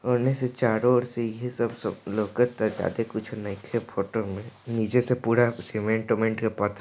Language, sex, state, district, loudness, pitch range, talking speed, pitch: Bhojpuri, male, Bihar, East Champaran, -27 LUFS, 110-125 Hz, 170 wpm, 115 Hz